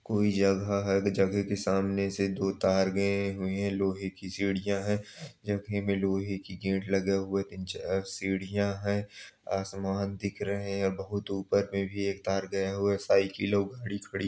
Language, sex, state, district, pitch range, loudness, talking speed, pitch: Hindi, male, Uttar Pradesh, Jalaun, 95-100 Hz, -30 LUFS, 190 wpm, 100 Hz